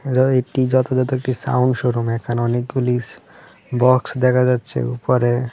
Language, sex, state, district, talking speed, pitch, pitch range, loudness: Bengali, male, Tripura, West Tripura, 120 wpm, 125 Hz, 120-130 Hz, -18 LUFS